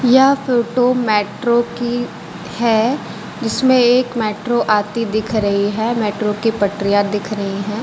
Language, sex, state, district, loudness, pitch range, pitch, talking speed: Hindi, female, Uttar Pradesh, Lucknow, -17 LUFS, 210-240 Hz, 225 Hz, 140 wpm